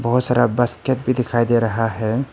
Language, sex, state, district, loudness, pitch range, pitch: Hindi, male, Arunachal Pradesh, Papum Pare, -19 LUFS, 115-125 Hz, 120 Hz